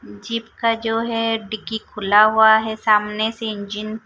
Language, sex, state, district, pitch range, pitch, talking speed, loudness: Hindi, female, Chhattisgarh, Raipur, 210-225 Hz, 220 Hz, 175 wpm, -19 LUFS